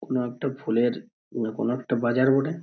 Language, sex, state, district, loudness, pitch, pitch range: Bengali, male, West Bengal, Purulia, -25 LUFS, 125 Hz, 120-135 Hz